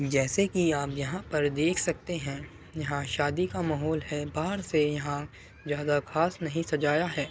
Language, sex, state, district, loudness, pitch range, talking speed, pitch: Hindi, male, Uttar Pradesh, Muzaffarnagar, -29 LUFS, 145-165 Hz, 170 wpm, 150 Hz